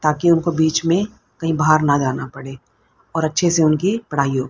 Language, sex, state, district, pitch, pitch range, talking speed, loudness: Hindi, female, Haryana, Rohtak, 155 Hz, 140-170 Hz, 200 wpm, -18 LUFS